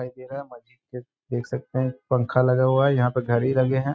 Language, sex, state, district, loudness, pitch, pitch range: Hindi, male, Bihar, Sitamarhi, -23 LUFS, 130 Hz, 125-135 Hz